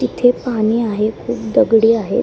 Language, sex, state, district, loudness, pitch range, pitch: Marathi, female, Maharashtra, Mumbai Suburban, -16 LUFS, 215-245 Hz, 225 Hz